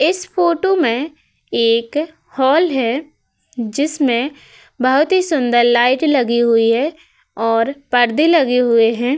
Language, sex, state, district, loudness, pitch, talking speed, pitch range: Hindi, female, Uttar Pradesh, Hamirpur, -16 LUFS, 265 Hz, 125 wpm, 235-310 Hz